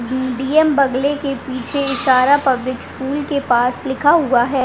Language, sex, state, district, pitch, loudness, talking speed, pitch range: Hindi, female, Uttar Pradesh, Deoria, 265 Hz, -17 LUFS, 155 wpm, 255-285 Hz